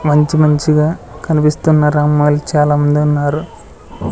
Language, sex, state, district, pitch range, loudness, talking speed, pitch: Telugu, male, Andhra Pradesh, Sri Satya Sai, 150-155 Hz, -13 LUFS, 115 wpm, 150 Hz